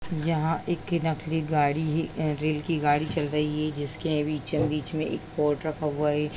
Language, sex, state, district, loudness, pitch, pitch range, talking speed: Hindi, female, Bihar, Saran, -27 LUFS, 155 Hz, 150-160 Hz, 190 wpm